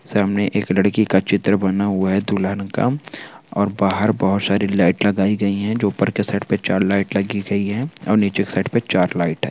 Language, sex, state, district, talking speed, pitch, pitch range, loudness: Hindi, male, Bihar, Begusarai, 225 wpm, 100 Hz, 95-105 Hz, -19 LUFS